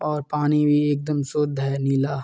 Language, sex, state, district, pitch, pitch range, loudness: Hindi, male, Uttar Pradesh, Muzaffarnagar, 145 Hz, 140-150 Hz, -22 LUFS